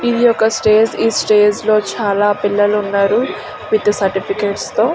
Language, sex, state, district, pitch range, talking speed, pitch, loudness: Telugu, female, Andhra Pradesh, Srikakulam, 205-220 Hz, 145 wpm, 210 Hz, -14 LUFS